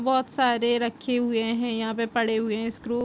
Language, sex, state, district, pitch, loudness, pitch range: Hindi, female, Chhattisgarh, Bilaspur, 235 Hz, -25 LUFS, 230-245 Hz